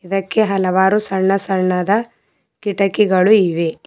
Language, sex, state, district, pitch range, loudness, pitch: Kannada, female, Karnataka, Bidar, 185-205 Hz, -16 LUFS, 195 Hz